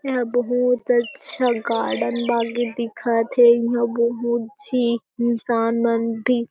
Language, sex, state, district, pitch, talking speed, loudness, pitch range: Chhattisgarhi, female, Chhattisgarh, Jashpur, 235 Hz, 120 wpm, -21 LUFS, 235-245 Hz